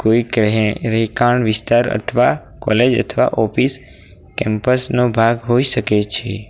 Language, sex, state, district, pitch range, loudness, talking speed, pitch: Gujarati, male, Gujarat, Valsad, 110-120 Hz, -16 LUFS, 130 wpm, 115 Hz